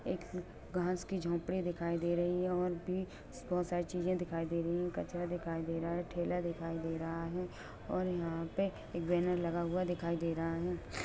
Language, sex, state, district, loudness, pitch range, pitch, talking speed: Hindi, female, Bihar, Gopalganj, -37 LUFS, 170-180 Hz, 175 Hz, 205 wpm